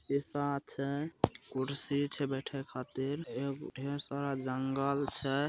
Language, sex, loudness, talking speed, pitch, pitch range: Bhojpuri, male, -36 LUFS, 120 wpm, 140 Hz, 135-140 Hz